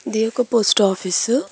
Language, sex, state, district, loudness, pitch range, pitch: Telugu, female, Telangana, Hyderabad, -18 LUFS, 205-250 Hz, 225 Hz